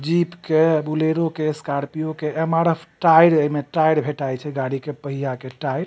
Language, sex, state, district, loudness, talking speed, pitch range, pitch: Maithili, male, Bihar, Supaul, -20 LUFS, 185 wpm, 140-160 Hz, 155 Hz